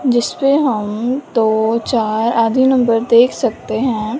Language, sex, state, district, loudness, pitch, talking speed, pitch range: Hindi, male, Punjab, Fazilka, -15 LUFS, 235 Hz, 130 wpm, 225-260 Hz